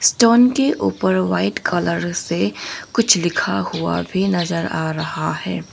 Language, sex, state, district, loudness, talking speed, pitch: Hindi, female, Arunachal Pradesh, Longding, -18 LUFS, 145 wpm, 160 Hz